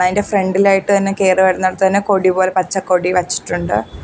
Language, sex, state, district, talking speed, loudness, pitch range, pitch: Malayalam, female, Kerala, Kollam, 135 wpm, -15 LUFS, 180-195 Hz, 185 Hz